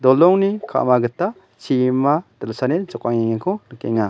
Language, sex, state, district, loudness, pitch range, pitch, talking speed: Garo, male, Meghalaya, West Garo Hills, -19 LUFS, 120-175 Hz, 130 Hz, 100 wpm